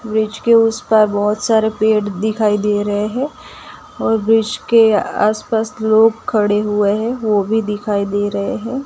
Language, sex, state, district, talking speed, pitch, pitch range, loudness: Hindi, female, Gujarat, Gandhinagar, 175 wpm, 215 Hz, 210-225 Hz, -16 LUFS